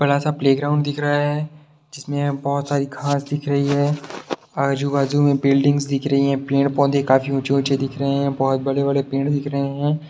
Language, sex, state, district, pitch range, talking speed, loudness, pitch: Hindi, male, Bihar, Sitamarhi, 140-145 Hz, 190 wpm, -20 LUFS, 140 Hz